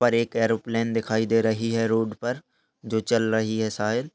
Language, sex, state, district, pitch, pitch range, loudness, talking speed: Hindi, male, Uttar Pradesh, Gorakhpur, 115 Hz, 110-115 Hz, -24 LUFS, 205 wpm